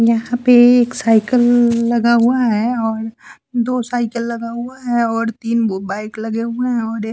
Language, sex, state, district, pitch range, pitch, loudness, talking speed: Hindi, male, Bihar, West Champaran, 225-245 Hz, 235 Hz, -16 LUFS, 195 wpm